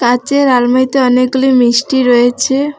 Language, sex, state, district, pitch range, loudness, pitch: Bengali, female, West Bengal, Alipurduar, 245-270 Hz, -11 LUFS, 255 Hz